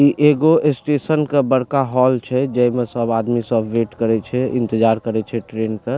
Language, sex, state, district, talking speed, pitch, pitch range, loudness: Maithili, male, Bihar, Supaul, 210 wpm, 125 Hz, 115-140 Hz, -18 LUFS